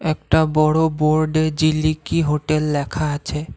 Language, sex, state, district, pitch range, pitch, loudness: Bengali, male, Assam, Kamrup Metropolitan, 150-155 Hz, 155 Hz, -19 LUFS